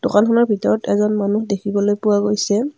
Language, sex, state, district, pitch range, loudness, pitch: Assamese, female, Assam, Kamrup Metropolitan, 205-215 Hz, -17 LUFS, 210 Hz